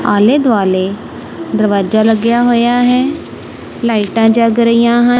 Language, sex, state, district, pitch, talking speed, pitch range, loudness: Punjabi, female, Punjab, Kapurthala, 230 Hz, 115 wpm, 215-240 Hz, -12 LUFS